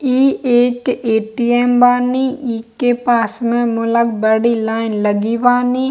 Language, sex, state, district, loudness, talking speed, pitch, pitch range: Hindi, female, Bihar, Kishanganj, -15 LUFS, 120 wpm, 240 Hz, 225-245 Hz